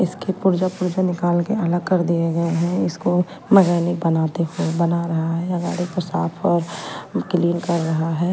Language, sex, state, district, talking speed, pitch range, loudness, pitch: Hindi, female, Bihar, Patna, 185 wpm, 170-180 Hz, -20 LUFS, 175 Hz